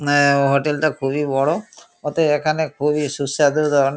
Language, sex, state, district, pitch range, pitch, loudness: Bengali, male, West Bengal, Kolkata, 140-155 Hz, 150 Hz, -19 LUFS